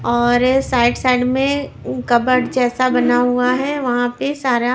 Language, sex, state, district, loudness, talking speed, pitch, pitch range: Hindi, female, Maharashtra, Washim, -16 LUFS, 150 wpm, 250 Hz, 245-260 Hz